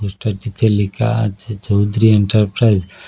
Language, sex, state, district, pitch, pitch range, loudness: Bengali, male, Assam, Hailakandi, 105 Hz, 100-110 Hz, -16 LUFS